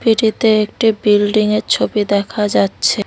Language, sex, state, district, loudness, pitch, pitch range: Bengali, female, West Bengal, Cooch Behar, -15 LUFS, 215 Hz, 205-220 Hz